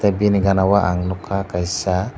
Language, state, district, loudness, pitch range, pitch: Kokborok, Tripura, Dhalai, -19 LUFS, 90-100 Hz, 95 Hz